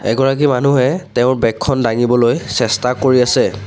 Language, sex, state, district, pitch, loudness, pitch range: Assamese, male, Assam, Sonitpur, 125 Hz, -14 LUFS, 120-135 Hz